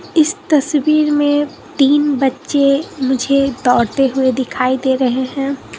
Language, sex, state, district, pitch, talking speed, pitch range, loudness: Hindi, female, Bihar, Katihar, 275 Hz, 125 wpm, 260-295 Hz, -15 LUFS